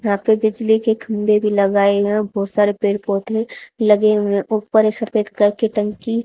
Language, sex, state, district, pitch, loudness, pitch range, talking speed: Hindi, female, Haryana, Rohtak, 210 Hz, -17 LUFS, 205-220 Hz, 200 wpm